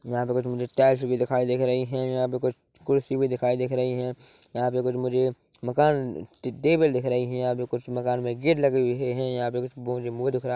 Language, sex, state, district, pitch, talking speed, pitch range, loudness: Hindi, male, Chhattisgarh, Korba, 125 Hz, 250 wpm, 125-130 Hz, -26 LUFS